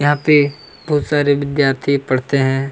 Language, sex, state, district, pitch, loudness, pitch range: Hindi, male, Chhattisgarh, Kabirdham, 140 Hz, -16 LUFS, 135-145 Hz